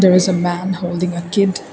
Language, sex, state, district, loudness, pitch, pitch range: English, female, Assam, Kamrup Metropolitan, -17 LUFS, 180 Hz, 175-185 Hz